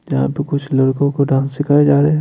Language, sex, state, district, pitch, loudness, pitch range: Hindi, male, Bihar, Patna, 140 Hz, -15 LUFS, 135-145 Hz